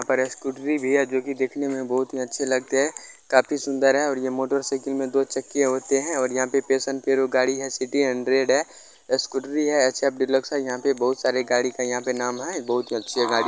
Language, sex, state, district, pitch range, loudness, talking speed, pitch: Maithili, male, Bihar, Begusarai, 130-135 Hz, -23 LUFS, 245 wpm, 135 Hz